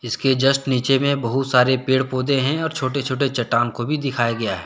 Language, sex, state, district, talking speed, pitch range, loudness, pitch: Hindi, male, Jharkhand, Deoghar, 230 wpm, 120-135 Hz, -20 LUFS, 130 Hz